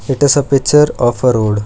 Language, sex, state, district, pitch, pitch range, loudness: English, male, Karnataka, Bangalore, 135 Hz, 120-145 Hz, -12 LUFS